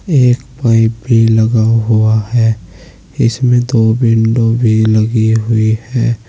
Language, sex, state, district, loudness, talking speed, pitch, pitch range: Hindi, male, Uttar Pradesh, Saharanpur, -12 LUFS, 125 wpm, 115 Hz, 110-120 Hz